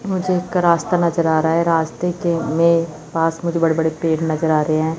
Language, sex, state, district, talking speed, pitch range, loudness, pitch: Hindi, female, Chandigarh, Chandigarh, 230 wpm, 160-170 Hz, -18 LUFS, 165 Hz